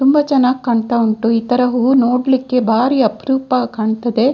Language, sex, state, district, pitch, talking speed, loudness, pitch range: Kannada, female, Karnataka, Dakshina Kannada, 250 Hz, 150 wpm, -15 LUFS, 230-265 Hz